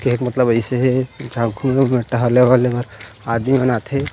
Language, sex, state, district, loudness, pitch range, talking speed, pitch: Chhattisgarhi, male, Chhattisgarh, Rajnandgaon, -17 LUFS, 120-130 Hz, 190 wpm, 125 Hz